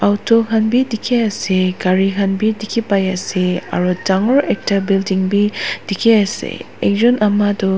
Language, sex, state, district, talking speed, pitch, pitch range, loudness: Nagamese, female, Nagaland, Dimapur, 170 wpm, 205 Hz, 190-225 Hz, -16 LUFS